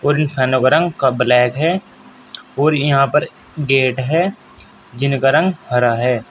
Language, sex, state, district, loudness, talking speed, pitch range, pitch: Hindi, male, Uttar Pradesh, Saharanpur, -16 LUFS, 170 wpm, 125-150 Hz, 135 Hz